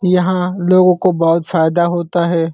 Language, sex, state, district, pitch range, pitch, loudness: Hindi, male, Uttar Pradesh, Deoria, 170-180 Hz, 175 Hz, -14 LUFS